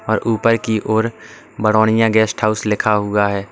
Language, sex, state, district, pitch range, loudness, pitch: Hindi, male, Uttar Pradesh, Lalitpur, 105-110 Hz, -16 LUFS, 110 Hz